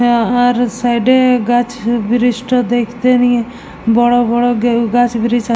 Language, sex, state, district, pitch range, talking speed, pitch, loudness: Bengali, male, West Bengal, Jalpaiguri, 235-245 Hz, 150 wpm, 240 Hz, -13 LUFS